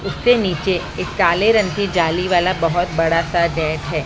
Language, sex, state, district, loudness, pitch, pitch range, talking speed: Hindi, male, Maharashtra, Mumbai Suburban, -17 LUFS, 175 Hz, 165-195 Hz, 190 wpm